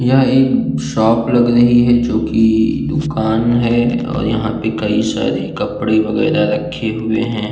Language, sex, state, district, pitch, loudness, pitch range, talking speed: Hindi, male, Uttar Pradesh, Jalaun, 115 Hz, -15 LUFS, 110-120 Hz, 160 wpm